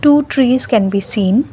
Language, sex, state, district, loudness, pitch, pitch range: English, female, Assam, Kamrup Metropolitan, -13 LUFS, 250 Hz, 200-280 Hz